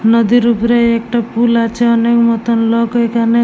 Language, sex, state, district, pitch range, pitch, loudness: Bengali, male, West Bengal, Jalpaiguri, 230-235 Hz, 235 Hz, -12 LUFS